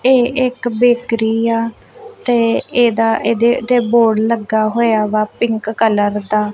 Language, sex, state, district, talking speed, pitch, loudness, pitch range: Punjabi, female, Punjab, Kapurthala, 135 wpm, 230 Hz, -15 LUFS, 220-245 Hz